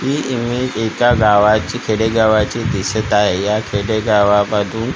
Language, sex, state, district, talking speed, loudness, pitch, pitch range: Marathi, male, Maharashtra, Gondia, 110 wpm, -15 LUFS, 110 Hz, 105-120 Hz